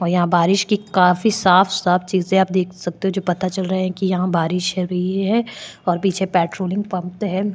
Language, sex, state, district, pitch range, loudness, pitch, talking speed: Hindi, female, Maharashtra, Chandrapur, 180-195 Hz, -19 LUFS, 185 Hz, 215 wpm